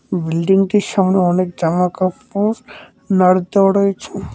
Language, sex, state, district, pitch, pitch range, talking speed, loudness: Bengali, male, West Bengal, Cooch Behar, 190 Hz, 180-200 Hz, 95 wpm, -16 LUFS